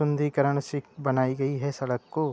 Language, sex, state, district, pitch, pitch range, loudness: Hindi, male, Uttar Pradesh, Hamirpur, 140 Hz, 135-145 Hz, -27 LUFS